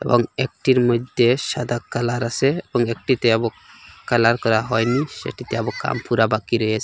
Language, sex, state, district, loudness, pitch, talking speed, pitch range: Bengali, male, Assam, Hailakandi, -20 LUFS, 120 Hz, 160 wpm, 115-125 Hz